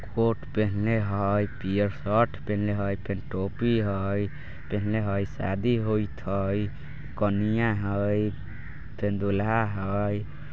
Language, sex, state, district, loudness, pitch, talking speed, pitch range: Bajjika, male, Bihar, Vaishali, -27 LUFS, 105 Hz, 115 wpm, 100-110 Hz